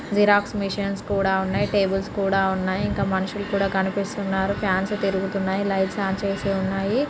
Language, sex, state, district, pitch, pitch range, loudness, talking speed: Telugu, female, Andhra Pradesh, Srikakulam, 195 Hz, 190-200 Hz, -23 LUFS, 145 wpm